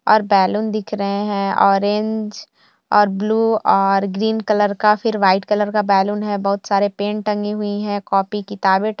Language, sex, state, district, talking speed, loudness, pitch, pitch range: Hindi, female, Bihar, Jamui, 175 wpm, -18 LUFS, 205 Hz, 200-210 Hz